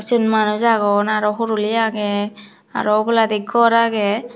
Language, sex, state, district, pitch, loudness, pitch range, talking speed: Chakma, female, Tripura, Dhalai, 215 Hz, -17 LUFS, 210-230 Hz, 135 wpm